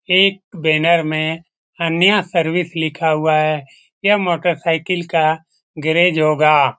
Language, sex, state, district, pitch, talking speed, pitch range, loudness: Hindi, male, Bihar, Jamui, 165 Hz, 125 wpm, 155-175 Hz, -16 LUFS